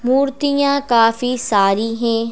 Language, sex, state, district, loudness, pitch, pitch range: Hindi, female, Madhya Pradesh, Bhopal, -16 LUFS, 240 Hz, 225-275 Hz